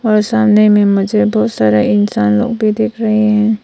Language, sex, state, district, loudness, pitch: Hindi, female, Arunachal Pradesh, Papum Pare, -12 LUFS, 210 Hz